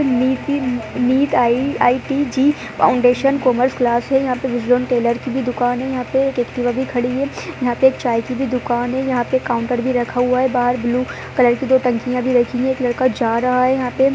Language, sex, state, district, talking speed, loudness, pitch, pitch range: Hindi, female, Uttar Pradesh, Budaun, 215 wpm, -17 LUFS, 250 Hz, 245-260 Hz